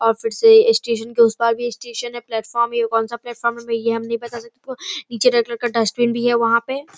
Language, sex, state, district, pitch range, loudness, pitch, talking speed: Hindi, female, Bihar, Darbhanga, 230-240 Hz, -18 LUFS, 235 Hz, 260 wpm